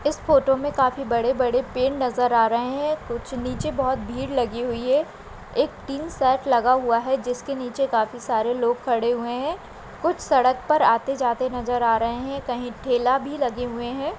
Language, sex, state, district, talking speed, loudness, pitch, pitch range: Hindi, female, Maharashtra, Aurangabad, 190 wpm, -23 LUFS, 255 Hz, 240-270 Hz